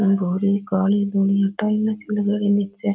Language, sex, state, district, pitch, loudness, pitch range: Rajasthani, female, Rajasthan, Nagaur, 200 Hz, -21 LUFS, 195-205 Hz